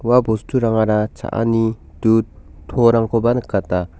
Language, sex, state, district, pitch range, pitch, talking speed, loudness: Garo, male, Meghalaya, South Garo Hills, 105-115 Hz, 110 Hz, 90 wpm, -18 LUFS